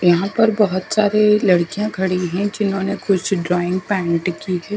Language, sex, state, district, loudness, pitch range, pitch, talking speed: Hindi, female, Haryana, Charkhi Dadri, -18 LUFS, 180-205 Hz, 190 Hz, 165 wpm